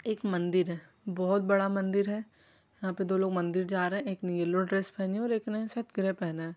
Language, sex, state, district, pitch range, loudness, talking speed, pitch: Hindi, female, Bihar, Saran, 180-200 Hz, -31 LUFS, 255 wpm, 190 Hz